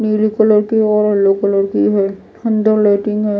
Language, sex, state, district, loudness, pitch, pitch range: Hindi, female, Odisha, Malkangiri, -14 LUFS, 210 Hz, 200-215 Hz